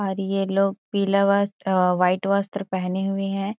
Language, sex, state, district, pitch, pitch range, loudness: Hindi, female, Chhattisgarh, Rajnandgaon, 195 Hz, 190-200 Hz, -22 LUFS